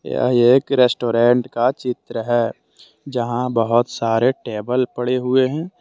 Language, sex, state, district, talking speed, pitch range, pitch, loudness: Hindi, male, Jharkhand, Deoghar, 135 wpm, 120-130 Hz, 125 Hz, -18 LUFS